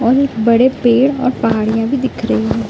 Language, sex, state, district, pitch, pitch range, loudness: Hindi, female, Bihar, Gaya, 235 Hz, 225-260 Hz, -14 LUFS